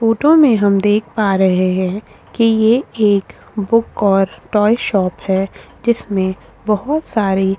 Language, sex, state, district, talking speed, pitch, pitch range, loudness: Hindi, female, Chhattisgarh, Korba, 150 wpm, 210 Hz, 195-225 Hz, -15 LUFS